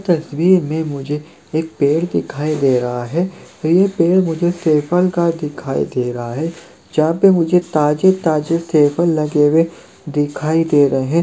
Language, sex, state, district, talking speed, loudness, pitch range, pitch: Hindi, male, Chhattisgarh, Sarguja, 165 wpm, -16 LUFS, 150-170 Hz, 160 Hz